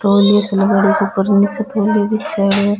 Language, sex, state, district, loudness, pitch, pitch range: Rajasthani, female, Rajasthan, Nagaur, -14 LUFS, 200 Hz, 200-205 Hz